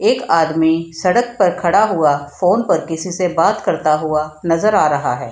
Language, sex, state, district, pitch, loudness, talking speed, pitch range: Hindi, female, Bihar, Madhepura, 165 Hz, -16 LUFS, 205 wpm, 160-185 Hz